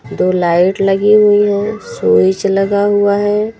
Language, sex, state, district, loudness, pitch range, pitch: Hindi, female, Uttar Pradesh, Lucknow, -12 LUFS, 185-205 Hz, 200 Hz